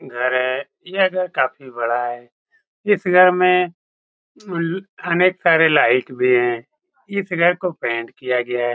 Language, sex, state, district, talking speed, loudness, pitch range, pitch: Hindi, male, Bihar, Saran, 145 wpm, -18 LUFS, 120-180 Hz, 150 Hz